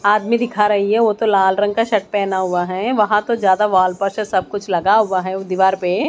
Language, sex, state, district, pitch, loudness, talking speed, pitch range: Hindi, female, Maharashtra, Mumbai Suburban, 200 Hz, -17 LUFS, 255 wpm, 190-215 Hz